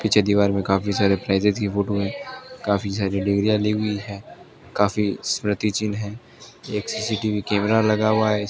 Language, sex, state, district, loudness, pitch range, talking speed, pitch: Hindi, male, Rajasthan, Bikaner, -22 LUFS, 100-110 Hz, 185 wpm, 105 Hz